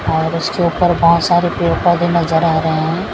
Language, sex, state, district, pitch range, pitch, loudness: Hindi, female, Maharashtra, Mumbai Suburban, 165-175 Hz, 170 Hz, -14 LUFS